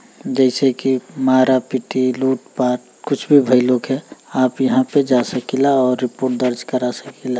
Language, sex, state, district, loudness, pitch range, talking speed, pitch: Bhojpuri, male, Uttar Pradesh, Deoria, -17 LUFS, 125-135 Hz, 160 wpm, 130 Hz